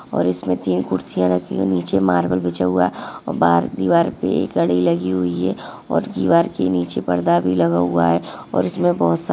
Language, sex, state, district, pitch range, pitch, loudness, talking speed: Hindi, female, Maharashtra, Aurangabad, 85-90 Hz, 90 Hz, -19 LUFS, 220 wpm